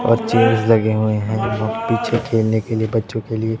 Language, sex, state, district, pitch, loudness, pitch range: Hindi, male, Punjab, Pathankot, 110 Hz, -18 LUFS, 110-115 Hz